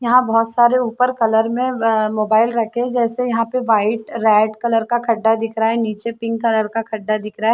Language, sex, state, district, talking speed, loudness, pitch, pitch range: Hindi, female, Chhattisgarh, Bilaspur, 225 wpm, -17 LUFS, 225 Hz, 220-235 Hz